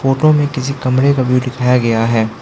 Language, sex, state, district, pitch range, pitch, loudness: Hindi, male, Arunachal Pradesh, Lower Dibang Valley, 120-135 Hz, 130 Hz, -14 LUFS